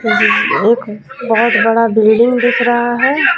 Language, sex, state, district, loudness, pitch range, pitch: Hindi, female, Jharkhand, Ranchi, -12 LUFS, 225-240 Hz, 235 Hz